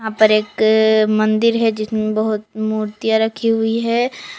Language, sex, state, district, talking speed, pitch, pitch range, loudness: Hindi, female, Jharkhand, Palamu, 150 wpm, 220 Hz, 215-225 Hz, -17 LUFS